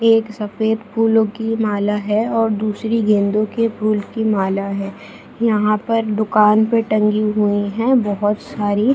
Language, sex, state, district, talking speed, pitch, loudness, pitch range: Hindi, female, Bihar, Jahanabad, 165 wpm, 215 Hz, -17 LUFS, 210-225 Hz